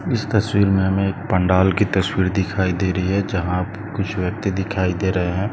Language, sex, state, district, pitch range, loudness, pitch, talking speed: Hindi, male, Maharashtra, Chandrapur, 95-100 Hz, -20 LUFS, 95 Hz, 205 wpm